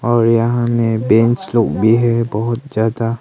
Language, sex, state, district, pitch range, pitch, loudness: Hindi, male, Arunachal Pradesh, Longding, 115-120 Hz, 115 Hz, -15 LUFS